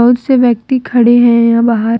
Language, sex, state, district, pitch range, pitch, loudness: Hindi, female, Jharkhand, Deoghar, 235-245 Hz, 240 Hz, -10 LUFS